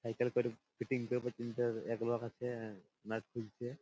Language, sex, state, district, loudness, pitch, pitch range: Bengali, male, West Bengal, Purulia, -40 LUFS, 120 Hz, 115-125 Hz